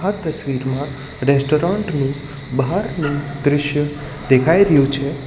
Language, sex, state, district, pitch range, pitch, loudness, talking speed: Gujarati, male, Gujarat, Valsad, 140-150 Hz, 145 Hz, -18 LUFS, 100 wpm